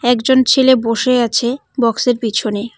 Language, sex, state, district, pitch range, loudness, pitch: Bengali, female, West Bengal, Cooch Behar, 230-260 Hz, -14 LUFS, 245 Hz